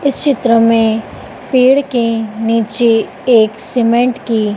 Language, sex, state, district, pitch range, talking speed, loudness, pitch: Hindi, female, Madhya Pradesh, Dhar, 225-250 Hz, 120 wpm, -13 LUFS, 230 Hz